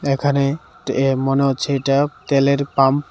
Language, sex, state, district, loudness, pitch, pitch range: Bengali, male, Tripura, West Tripura, -18 LUFS, 140 Hz, 135-140 Hz